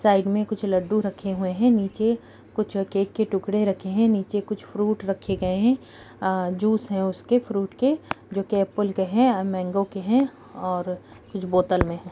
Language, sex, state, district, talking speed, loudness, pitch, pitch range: Kumaoni, female, Uttarakhand, Uttarkashi, 195 wpm, -24 LUFS, 200 Hz, 190-215 Hz